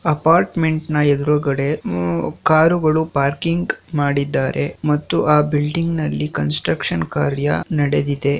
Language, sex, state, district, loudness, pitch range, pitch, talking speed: Kannada, male, Karnataka, Shimoga, -18 LUFS, 140-160 Hz, 150 Hz, 100 wpm